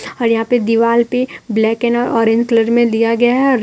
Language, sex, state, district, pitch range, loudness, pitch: Hindi, female, Jharkhand, Deoghar, 230-240 Hz, -14 LUFS, 235 Hz